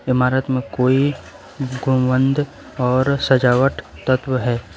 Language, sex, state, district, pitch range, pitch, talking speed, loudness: Hindi, male, West Bengal, Alipurduar, 125-135 Hz, 130 Hz, 100 wpm, -18 LUFS